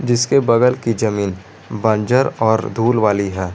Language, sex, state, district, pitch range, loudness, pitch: Hindi, male, Jharkhand, Garhwa, 100-120 Hz, -16 LUFS, 110 Hz